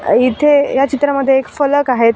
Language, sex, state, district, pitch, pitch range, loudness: Marathi, female, Maharashtra, Sindhudurg, 275 Hz, 255-285 Hz, -13 LUFS